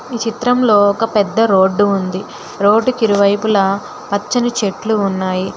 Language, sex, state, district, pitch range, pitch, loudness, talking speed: Telugu, female, Telangana, Hyderabad, 195-225 Hz, 205 Hz, -15 LUFS, 130 wpm